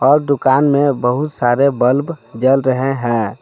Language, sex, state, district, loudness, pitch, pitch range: Hindi, male, Jharkhand, Palamu, -15 LUFS, 135 Hz, 125-140 Hz